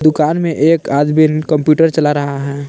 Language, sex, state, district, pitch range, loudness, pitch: Hindi, male, Jharkhand, Palamu, 145-160 Hz, -13 LUFS, 155 Hz